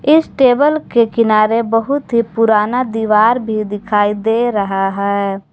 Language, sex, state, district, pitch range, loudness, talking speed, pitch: Hindi, female, Jharkhand, Garhwa, 210-245 Hz, -14 LUFS, 140 wpm, 225 Hz